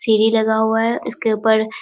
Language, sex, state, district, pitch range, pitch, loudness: Hindi, female, Bihar, Muzaffarpur, 220-225 Hz, 220 Hz, -17 LUFS